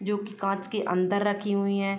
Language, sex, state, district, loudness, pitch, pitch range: Hindi, female, Uttar Pradesh, Jyotiba Phule Nagar, -27 LUFS, 200 Hz, 195-205 Hz